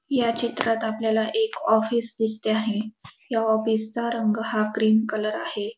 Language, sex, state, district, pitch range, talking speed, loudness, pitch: Marathi, female, Maharashtra, Dhule, 220-230 Hz, 145 wpm, -24 LUFS, 220 Hz